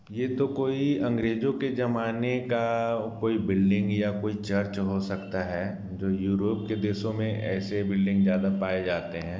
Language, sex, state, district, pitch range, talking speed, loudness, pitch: Hindi, male, Bihar, Sitamarhi, 95-115 Hz, 165 wpm, -28 LUFS, 105 Hz